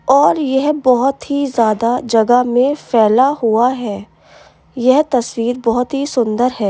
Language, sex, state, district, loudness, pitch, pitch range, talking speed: Hindi, female, Uttar Pradesh, Varanasi, -14 LUFS, 245 Hz, 230-270 Hz, 145 wpm